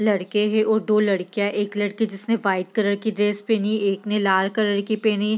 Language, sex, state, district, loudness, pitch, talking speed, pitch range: Hindi, female, Bihar, East Champaran, -22 LUFS, 210 Hz, 225 wpm, 200-215 Hz